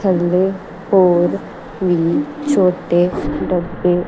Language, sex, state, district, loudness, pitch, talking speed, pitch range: Punjabi, female, Punjab, Kapurthala, -16 LUFS, 180 Hz, 75 wpm, 175-190 Hz